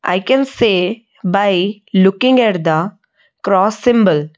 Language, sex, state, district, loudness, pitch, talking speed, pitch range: English, female, Odisha, Malkangiri, -14 LUFS, 200 Hz, 125 wpm, 185-230 Hz